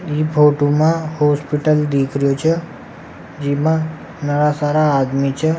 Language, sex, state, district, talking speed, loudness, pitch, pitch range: Rajasthani, male, Rajasthan, Nagaur, 130 wpm, -17 LUFS, 150 Hz, 145-155 Hz